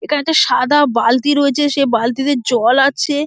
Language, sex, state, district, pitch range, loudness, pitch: Bengali, female, West Bengal, Dakshin Dinajpur, 245-295 Hz, -14 LUFS, 280 Hz